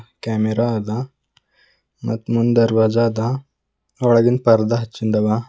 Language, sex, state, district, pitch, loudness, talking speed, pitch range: Kannada, male, Karnataka, Bidar, 115 Hz, -18 LUFS, 100 wpm, 110-120 Hz